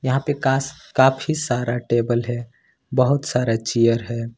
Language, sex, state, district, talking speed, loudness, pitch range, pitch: Hindi, male, Jharkhand, Ranchi, 110 wpm, -21 LUFS, 120-135 Hz, 125 Hz